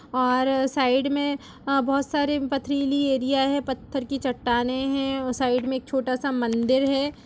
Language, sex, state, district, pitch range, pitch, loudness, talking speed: Hindi, female, Uttar Pradesh, Jalaun, 255-275 Hz, 270 Hz, -24 LUFS, 175 wpm